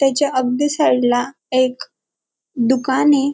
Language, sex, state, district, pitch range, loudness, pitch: Marathi, female, Maharashtra, Dhule, 255-290 Hz, -17 LUFS, 270 Hz